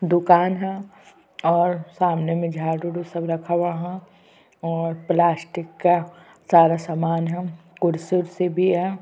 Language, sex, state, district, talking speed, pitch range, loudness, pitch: Hindi, female, Chhattisgarh, Sukma, 140 wpm, 165-180 Hz, -22 LUFS, 175 Hz